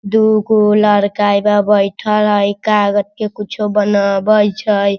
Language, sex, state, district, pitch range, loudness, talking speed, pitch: Hindi, female, Bihar, Sitamarhi, 200-210 Hz, -13 LUFS, 145 wpm, 205 Hz